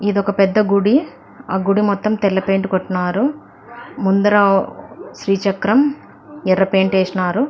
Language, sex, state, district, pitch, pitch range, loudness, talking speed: Telugu, female, Andhra Pradesh, Anantapur, 200 Hz, 190-225 Hz, -17 LUFS, 130 wpm